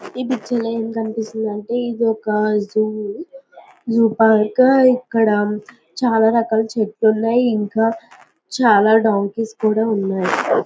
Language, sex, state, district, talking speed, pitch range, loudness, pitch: Telugu, female, Andhra Pradesh, Visakhapatnam, 120 wpm, 215-235 Hz, -17 LUFS, 225 Hz